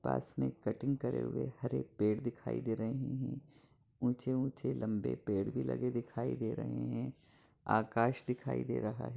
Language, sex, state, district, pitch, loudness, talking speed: Hindi, male, Chhattisgarh, Raigarh, 115 Hz, -37 LUFS, 165 wpm